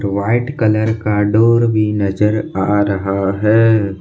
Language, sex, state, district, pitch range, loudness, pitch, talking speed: Hindi, male, Jharkhand, Ranchi, 100-110 Hz, -15 LUFS, 105 Hz, 150 wpm